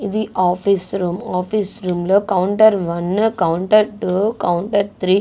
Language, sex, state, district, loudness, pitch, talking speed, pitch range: Telugu, female, Andhra Pradesh, Guntur, -17 LUFS, 195 Hz, 150 wpm, 180-210 Hz